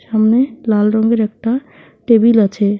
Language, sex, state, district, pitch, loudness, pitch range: Bengali, female, West Bengal, Alipurduar, 220 Hz, -14 LUFS, 215-230 Hz